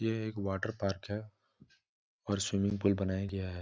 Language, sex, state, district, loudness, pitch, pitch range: Hindi, male, Jharkhand, Jamtara, -35 LUFS, 100 Hz, 95-105 Hz